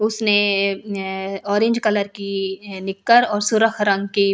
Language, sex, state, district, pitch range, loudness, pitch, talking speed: Hindi, female, Delhi, New Delhi, 195-215 Hz, -19 LUFS, 200 Hz, 125 wpm